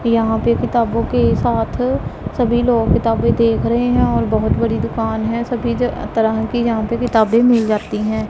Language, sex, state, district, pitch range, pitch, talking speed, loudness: Hindi, female, Punjab, Pathankot, 220-240 Hz, 230 Hz, 190 wpm, -17 LUFS